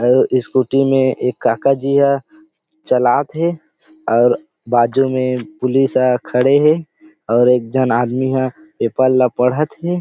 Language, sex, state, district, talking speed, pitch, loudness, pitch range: Chhattisgarhi, male, Chhattisgarh, Rajnandgaon, 150 wpm, 130 Hz, -16 LUFS, 125-155 Hz